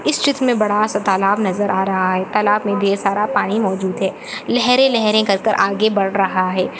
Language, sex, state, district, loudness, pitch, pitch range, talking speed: Hindi, female, Chhattisgarh, Jashpur, -17 LUFS, 205 Hz, 190-215 Hz, 230 wpm